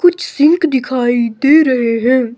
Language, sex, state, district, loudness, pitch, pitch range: Hindi, male, Himachal Pradesh, Shimla, -13 LUFS, 260 Hz, 240-310 Hz